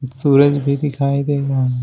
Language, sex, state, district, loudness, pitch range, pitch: Hindi, male, Uttar Pradesh, Shamli, -16 LUFS, 135-145 Hz, 140 Hz